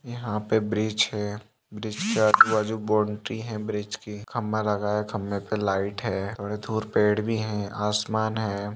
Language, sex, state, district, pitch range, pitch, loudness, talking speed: Hindi, female, Chhattisgarh, Raigarh, 105-110 Hz, 105 Hz, -26 LUFS, 180 wpm